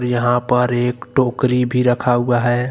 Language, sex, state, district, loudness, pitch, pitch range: Hindi, male, Jharkhand, Deoghar, -17 LUFS, 125 Hz, 120-125 Hz